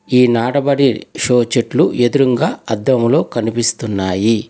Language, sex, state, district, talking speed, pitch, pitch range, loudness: Telugu, male, Telangana, Hyderabad, 95 wpm, 120 Hz, 115-130 Hz, -15 LUFS